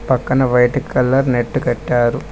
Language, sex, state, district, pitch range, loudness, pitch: Telugu, male, Telangana, Mahabubabad, 120-135 Hz, -16 LUFS, 125 Hz